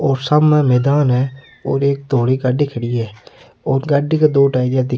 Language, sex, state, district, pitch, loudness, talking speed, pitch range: Rajasthani, male, Rajasthan, Nagaur, 135 Hz, -16 LUFS, 215 wpm, 125-145 Hz